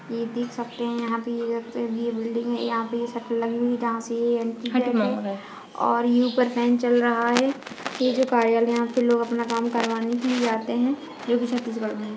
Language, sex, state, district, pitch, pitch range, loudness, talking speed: Hindi, female, Chhattisgarh, Kabirdham, 235 Hz, 230-240 Hz, -24 LUFS, 235 wpm